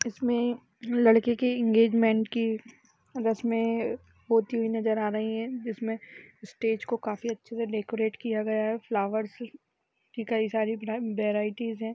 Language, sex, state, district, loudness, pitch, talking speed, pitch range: Hindi, female, Uttar Pradesh, Jalaun, -28 LUFS, 225 Hz, 140 wpm, 220-235 Hz